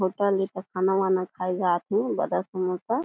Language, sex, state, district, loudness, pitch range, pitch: Chhattisgarhi, female, Chhattisgarh, Jashpur, -26 LUFS, 185-200 Hz, 190 Hz